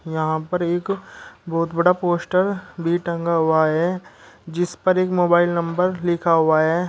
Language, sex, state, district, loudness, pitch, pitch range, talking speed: Hindi, male, Uttar Pradesh, Shamli, -20 LUFS, 175 Hz, 165-180 Hz, 155 wpm